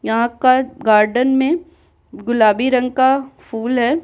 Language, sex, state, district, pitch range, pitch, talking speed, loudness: Hindi, female, Bihar, Kishanganj, 235-265 Hz, 255 Hz, 135 wpm, -16 LUFS